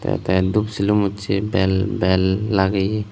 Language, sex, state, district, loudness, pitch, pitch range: Chakma, male, Tripura, Unakoti, -19 LUFS, 100 Hz, 95-105 Hz